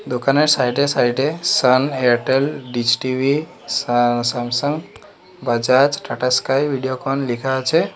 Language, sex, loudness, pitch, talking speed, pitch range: Bengali, male, -18 LUFS, 130 Hz, 130 wpm, 125-145 Hz